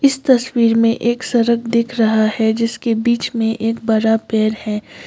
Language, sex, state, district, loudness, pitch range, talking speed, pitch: Hindi, female, Sikkim, Gangtok, -16 LUFS, 220-235 Hz, 165 wpm, 230 Hz